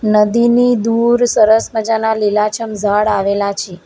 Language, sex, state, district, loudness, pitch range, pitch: Gujarati, female, Gujarat, Valsad, -14 LUFS, 210-230 Hz, 220 Hz